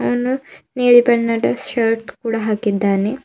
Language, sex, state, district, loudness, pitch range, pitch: Kannada, female, Karnataka, Bidar, -17 LUFS, 205-245 Hz, 230 Hz